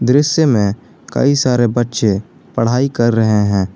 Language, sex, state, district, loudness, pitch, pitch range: Hindi, male, Jharkhand, Garhwa, -15 LUFS, 120 Hz, 105-130 Hz